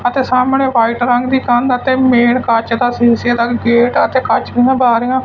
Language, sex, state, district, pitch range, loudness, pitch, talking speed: Punjabi, male, Punjab, Fazilka, 240-255 Hz, -13 LUFS, 245 Hz, 195 wpm